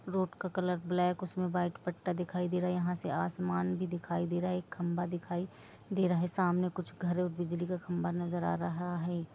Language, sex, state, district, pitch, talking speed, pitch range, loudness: Hindi, female, Jharkhand, Jamtara, 180 Hz, 225 wpm, 175-180 Hz, -34 LUFS